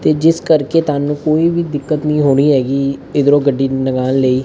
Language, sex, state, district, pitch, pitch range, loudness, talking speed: Punjabi, male, Punjab, Fazilka, 145 Hz, 135-155 Hz, -14 LUFS, 190 wpm